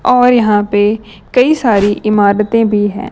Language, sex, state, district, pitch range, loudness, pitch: Hindi, female, Chhattisgarh, Raipur, 205-245 Hz, -11 LUFS, 210 Hz